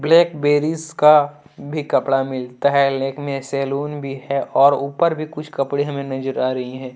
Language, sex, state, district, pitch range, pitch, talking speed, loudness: Hindi, male, Jharkhand, Deoghar, 135-150 Hz, 140 Hz, 170 wpm, -19 LUFS